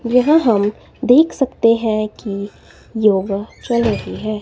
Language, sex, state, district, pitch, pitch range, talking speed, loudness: Hindi, female, Himachal Pradesh, Shimla, 220 Hz, 210-245 Hz, 135 wpm, -17 LUFS